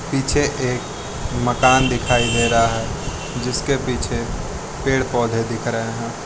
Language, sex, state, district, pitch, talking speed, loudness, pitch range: Hindi, male, Arunachal Pradesh, Lower Dibang Valley, 120 Hz, 135 wpm, -20 LUFS, 115-130 Hz